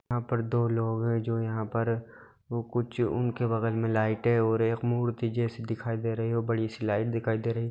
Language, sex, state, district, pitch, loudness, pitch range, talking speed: Hindi, male, Bihar, Muzaffarpur, 115 Hz, -29 LUFS, 115-120 Hz, 225 wpm